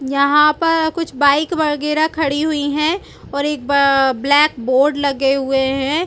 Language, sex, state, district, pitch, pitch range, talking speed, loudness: Hindi, female, Chhattisgarh, Bilaspur, 290 Hz, 275-310 Hz, 160 wpm, -16 LUFS